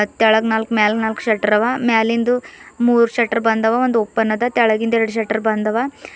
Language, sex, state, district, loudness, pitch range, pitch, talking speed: Kannada, female, Karnataka, Bidar, -17 LUFS, 220-235 Hz, 225 Hz, 165 wpm